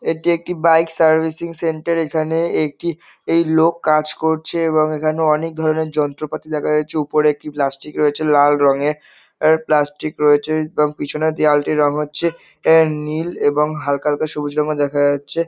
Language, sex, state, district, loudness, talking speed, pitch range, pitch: Bengali, male, West Bengal, North 24 Parganas, -17 LUFS, 145 wpm, 150-160 Hz, 155 Hz